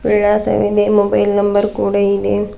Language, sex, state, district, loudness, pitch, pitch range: Kannada, female, Karnataka, Bidar, -14 LUFS, 205 Hz, 200-205 Hz